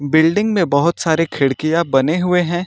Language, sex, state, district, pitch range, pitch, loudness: Hindi, male, Uttar Pradesh, Lucknow, 155-175 Hz, 165 Hz, -16 LUFS